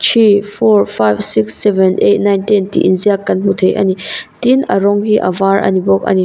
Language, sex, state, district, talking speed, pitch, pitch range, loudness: Mizo, female, Mizoram, Aizawl, 230 wpm, 195 Hz, 185-205 Hz, -12 LUFS